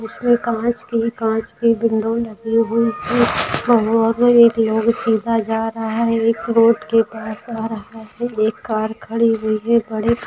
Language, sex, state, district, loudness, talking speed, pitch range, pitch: Hindi, female, Maharashtra, Pune, -18 LUFS, 150 wpm, 220-235 Hz, 230 Hz